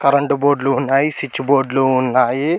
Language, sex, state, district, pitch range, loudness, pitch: Telugu, male, Telangana, Mahabubabad, 130-140 Hz, -16 LUFS, 135 Hz